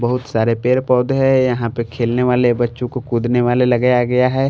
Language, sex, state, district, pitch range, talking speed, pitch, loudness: Hindi, male, Bihar, Patna, 120-125 Hz, 200 wpm, 125 Hz, -16 LUFS